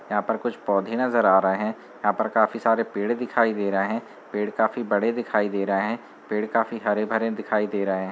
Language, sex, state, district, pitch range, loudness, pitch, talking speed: Hindi, male, Uttar Pradesh, Muzaffarnagar, 100-115 Hz, -24 LUFS, 105 Hz, 230 wpm